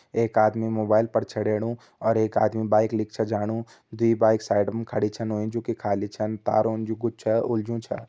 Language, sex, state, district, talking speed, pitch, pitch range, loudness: Hindi, male, Uttarakhand, Uttarkashi, 205 wpm, 110 Hz, 110-115 Hz, -25 LUFS